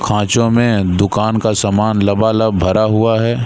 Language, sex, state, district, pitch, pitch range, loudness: Hindi, male, Bihar, Gaya, 110 Hz, 100-115 Hz, -14 LUFS